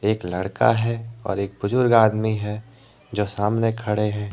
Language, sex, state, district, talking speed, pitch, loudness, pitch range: Hindi, male, Jharkhand, Deoghar, 165 wpm, 110 Hz, -22 LUFS, 105-115 Hz